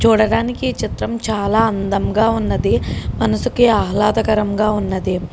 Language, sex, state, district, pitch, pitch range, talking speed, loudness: Telugu, female, Telangana, Karimnagar, 215 Hz, 205-225 Hz, 100 wpm, -17 LUFS